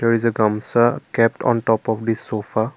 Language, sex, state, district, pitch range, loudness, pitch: English, male, Assam, Kamrup Metropolitan, 110-115 Hz, -19 LUFS, 115 Hz